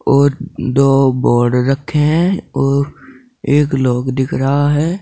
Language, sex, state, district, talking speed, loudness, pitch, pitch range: Hindi, male, Uttar Pradesh, Saharanpur, 130 wpm, -14 LUFS, 140 Hz, 135-155 Hz